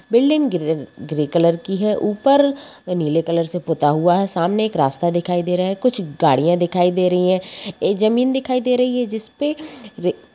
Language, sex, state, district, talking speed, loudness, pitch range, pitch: Hindi, female, Jharkhand, Sahebganj, 190 wpm, -18 LUFS, 170-245 Hz, 185 Hz